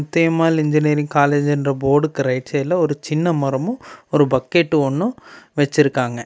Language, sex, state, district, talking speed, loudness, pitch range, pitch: Tamil, male, Tamil Nadu, Namakkal, 115 wpm, -18 LUFS, 140-165 Hz, 145 Hz